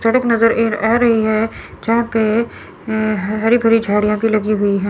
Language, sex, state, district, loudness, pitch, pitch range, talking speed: Hindi, female, Chandigarh, Chandigarh, -16 LUFS, 220 Hz, 215-230 Hz, 195 wpm